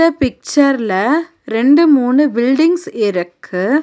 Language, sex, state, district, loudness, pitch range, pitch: Tamil, female, Tamil Nadu, Nilgiris, -14 LUFS, 220-310 Hz, 275 Hz